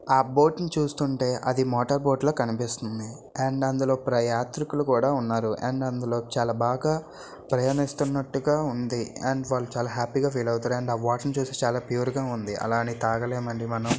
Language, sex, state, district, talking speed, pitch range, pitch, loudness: Telugu, male, Andhra Pradesh, Visakhapatnam, 170 wpm, 120-135 Hz, 125 Hz, -26 LUFS